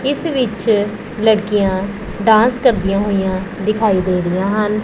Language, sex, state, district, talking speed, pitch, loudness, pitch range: Punjabi, female, Punjab, Pathankot, 135 wpm, 210 Hz, -16 LUFS, 195-220 Hz